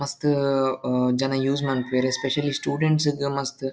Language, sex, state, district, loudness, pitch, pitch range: Tulu, male, Karnataka, Dakshina Kannada, -24 LUFS, 135 Hz, 130-140 Hz